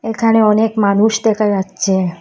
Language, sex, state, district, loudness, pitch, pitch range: Bengali, female, Assam, Hailakandi, -14 LUFS, 215 Hz, 195-220 Hz